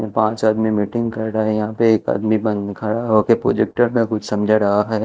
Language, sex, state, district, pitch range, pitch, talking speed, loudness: Hindi, male, Chhattisgarh, Raipur, 105-110 Hz, 110 Hz, 240 wpm, -18 LUFS